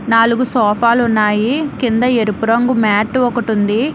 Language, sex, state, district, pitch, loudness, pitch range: Telugu, female, Telangana, Hyderabad, 230 Hz, -14 LUFS, 215-245 Hz